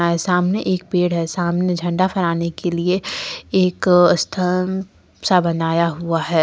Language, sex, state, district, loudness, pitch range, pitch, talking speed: Hindi, female, Jharkhand, Ranchi, -19 LUFS, 170-185 Hz, 180 Hz, 140 wpm